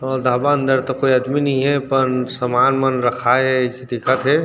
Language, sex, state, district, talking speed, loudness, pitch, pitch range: Chhattisgarhi, male, Chhattisgarh, Rajnandgaon, 215 wpm, -17 LUFS, 130 Hz, 125-135 Hz